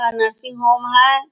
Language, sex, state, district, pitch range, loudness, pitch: Hindi, female, Bihar, Sitamarhi, 235-255 Hz, -15 LUFS, 245 Hz